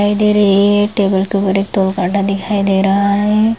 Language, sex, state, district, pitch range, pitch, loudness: Hindi, female, Bihar, Darbhanga, 195-205 Hz, 200 Hz, -14 LUFS